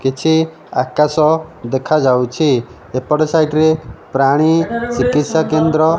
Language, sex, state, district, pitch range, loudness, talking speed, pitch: Odia, male, Odisha, Malkangiri, 130-160 Hz, -15 LUFS, 100 wpm, 155 Hz